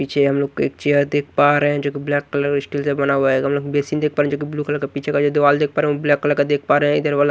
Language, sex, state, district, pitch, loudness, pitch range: Hindi, male, Odisha, Nuapada, 145 Hz, -18 LUFS, 140-145 Hz